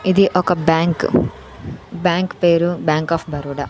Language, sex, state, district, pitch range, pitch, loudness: Telugu, female, Andhra Pradesh, Sri Satya Sai, 160-180 Hz, 170 Hz, -17 LUFS